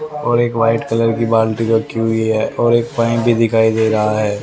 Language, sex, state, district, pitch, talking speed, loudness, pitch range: Hindi, male, Haryana, Rohtak, 115 Hz, 230 wpm, -15 LUFS, 110-120 Hz